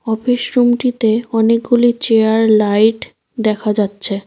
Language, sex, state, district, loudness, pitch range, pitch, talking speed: Bengali, female, West Bengal, Cooch Behar, -14 LUFS, 215-240 Hz, 225 Hz, 100 wpm